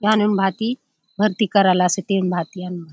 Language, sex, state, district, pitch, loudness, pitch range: Halbi, female, Chhattisgarh, Bastar, 195 Hz, -19 LUFS, 180-210 Hz